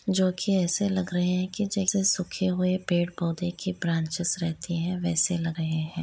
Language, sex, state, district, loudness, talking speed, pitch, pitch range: Hindi, female, Jharkhand, Jamtara, -27 LUFS, 200 wpm, 180 Hz, 170-190 Hz